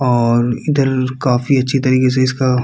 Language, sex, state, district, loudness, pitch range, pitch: Hindi, male, Bihar, Kishanganj, -15 LUFS, 125-130 Hz, 130 Hz